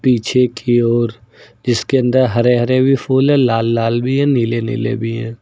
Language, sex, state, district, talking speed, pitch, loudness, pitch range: Hindi, male, Uttar Pradesh, Lucknow, 200 wpm, 120 Hz, -15 LUFS, 115-130 Hz